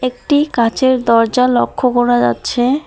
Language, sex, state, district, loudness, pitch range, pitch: Bengali, female, West Bengal, Alipurduar, -14 LUFS, 230-260 Hz, 245 Hz